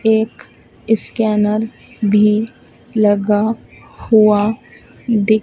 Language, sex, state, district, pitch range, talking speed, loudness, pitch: Hindi, female, Madhya Pradesh, Dhar, 210-225 Hz, 65 wpm, -16 LUFS, 215 Hz